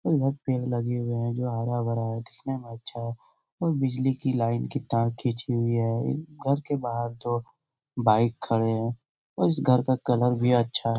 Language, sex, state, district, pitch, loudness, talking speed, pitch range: Hindi, male, Bihar, Lakhisarai, 120 Hz, -27 LUFS, 185 wpm, 115-135 Hz